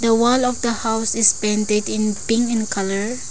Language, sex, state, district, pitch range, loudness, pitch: English, female, Arunachal Pradesh, Lower Dibang Valley, 210-235 Hz, -18 LUFS, 225 Hz